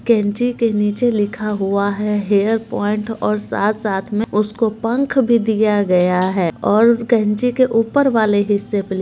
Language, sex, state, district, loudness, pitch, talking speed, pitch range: Hindi, female, Bihar, Muzaffarpur, -17 LUFS, 210 Hz, 175 wpm, 205-230 Hz